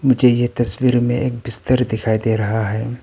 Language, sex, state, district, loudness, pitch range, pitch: Hindi, male, Arunachal Pradesh, Papum Pare, -18 LUFS, 110-125 Hz, 120 Hz